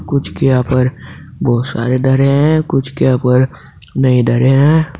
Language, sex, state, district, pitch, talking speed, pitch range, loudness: Hindi, male, Uttar Pradesh, Saharanpur, 130 Hz, 180 wpm, 125-140 Hz, -13 LUFS